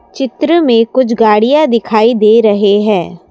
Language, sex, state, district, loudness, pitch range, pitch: Hindi, female, Assam, Kamrup Metropolitan, -10 LUFS, 210-260 Hz, 230 Hz